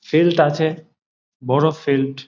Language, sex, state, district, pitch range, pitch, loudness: Bengali, male, West Bengal, Jalpaiguri, 135-160 Hz, 150 Hz, -18 LUFS